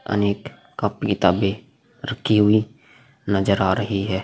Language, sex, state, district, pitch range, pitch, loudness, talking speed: Hindi, male, Bihar, Vaishali, 100-120 Hz, 105 Hz, -21 LUFS, 125 wpm